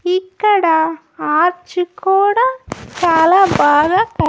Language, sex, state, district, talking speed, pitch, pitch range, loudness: Telugu, female, Andhra Pradesh, Annamaya, 70 wpm, 365 Hz, 330-400 Hz, -14 LUFS